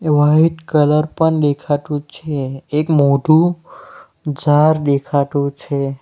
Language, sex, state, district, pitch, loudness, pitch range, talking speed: Gujarati, male, Gujarat, Valsad, 150 Hz, -16 LUFS, 140-155 Hz, 100 wpm